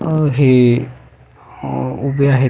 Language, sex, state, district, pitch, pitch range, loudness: Marathi, male, Maharashtra, Pune, 130 Hz, 120-140 Hz, -15 LUFS